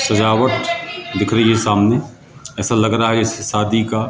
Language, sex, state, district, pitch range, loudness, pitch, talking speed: Hindi, male, Madhya Pradesh, Katni, 110-130 Hz, -16 LUFS, 115 Hz, 175 wpm